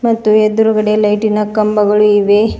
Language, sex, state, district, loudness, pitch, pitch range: Kannada, female, Karnataka, Bidar, -12 LUFS, 215 Hz, 210-215 Hz